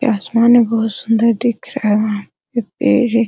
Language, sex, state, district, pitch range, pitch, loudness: Hindi, female, Bihar, Araria, 215-240 Hz, 230 Hz, -16 LUFS